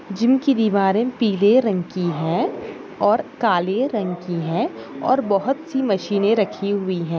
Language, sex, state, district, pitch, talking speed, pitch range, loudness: Hindi, female, Maharashtra, Nagpur, 210 Hz, 160 wpm, 185-260 Hz, -20 LUFS